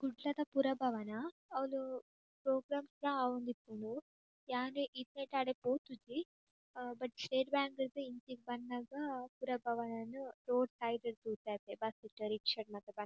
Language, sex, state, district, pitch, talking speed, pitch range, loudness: Tulu, female, Karnataka, Dakshina Kannada, 255 Hz, 140 wpm, 235-270 Hz, -41 LUFS